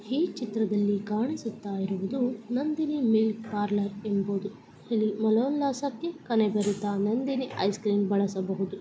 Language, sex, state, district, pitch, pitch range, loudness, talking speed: Kannada, female, Karnataka, Belgaum, 220 Hz, 200-250 Hz, -28 LUFS, 115 wpm